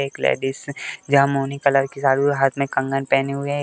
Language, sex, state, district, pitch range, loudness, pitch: Hindi, male, Uttar Pradesh, Deoria, 135-140 Hz, -20 LUFS, 140 Hz